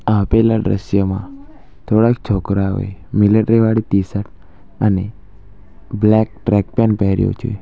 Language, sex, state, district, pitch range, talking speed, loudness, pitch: Gujarati, male, Gujarat, Valsad, 95-110 Hz, 100 wpm, -16 LUFS, 100 Hz